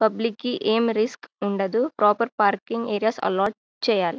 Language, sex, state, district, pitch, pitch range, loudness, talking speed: Telugu, female, Karnataka, Bellary, 220 Hz, 210-230 Hz, -23 LUFS, 145 wpm